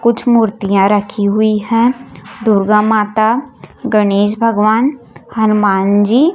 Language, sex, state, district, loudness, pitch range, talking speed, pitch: Hindi, female, Chhattisgarh, Raipur, -13 LUFS, 205-230 Hz, 105 wpm, 215 Hz